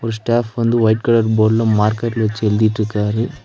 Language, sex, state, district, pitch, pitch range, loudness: Tamil, male, Tamil Nadu, Nilgiris, 110 Hz, 110-115 Hz, -16 LUFS